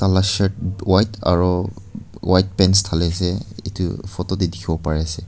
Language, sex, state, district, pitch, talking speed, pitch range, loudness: Nagamese, male, Nagaland, Kohima, 95 Hz, 150 wpm, 90-95 Hz, -20 LUFS